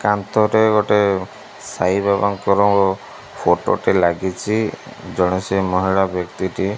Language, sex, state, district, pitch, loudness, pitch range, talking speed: Odia, male, Odisha, Malkangiri, 95 Hz, -18 LUFS, 95-105 Hz, 105 wpm